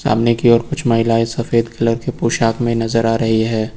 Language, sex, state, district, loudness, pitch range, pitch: Hindi, male, Uttar Pradesh, Lucknow, -16 LUFS, 115-120 Hz, 115 Hz